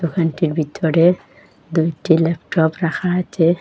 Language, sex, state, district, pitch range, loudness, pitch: Bengali, female, Assam, Hailakandi, 160-175 Hz, -18 LUFS, 165 Hz